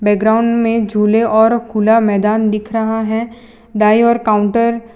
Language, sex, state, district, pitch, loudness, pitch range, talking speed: Hindi, female, Gujarat, Valsad, 225 Hz, -13 LUFS, 215-230 Hz, 155 wpm